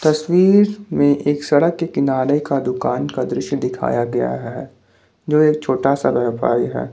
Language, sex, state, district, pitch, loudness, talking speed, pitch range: Hindi, male, Jharkhand, Garhwa, 145 Hz, -18 LUFS, 165 wpm, 130-155 Hz